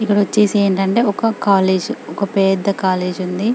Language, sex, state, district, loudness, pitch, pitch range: Telugu, female, Telangana, Karimnagar, -16 LUFS, 200 Hz, 190-210 Hz